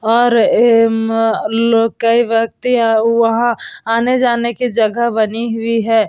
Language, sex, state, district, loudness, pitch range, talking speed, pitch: Hindi, female, Bihar, Vaishali, -14 LUFS, 225-235 Hz, 150 wpm, 230 Hz